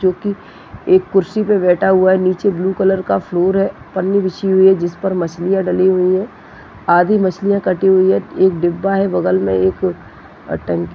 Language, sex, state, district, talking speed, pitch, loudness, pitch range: Hindi, female, Chhattisgarh, Jashpur, 200 wpm, 185 Hz, -15 LUFS, 175-195 Hz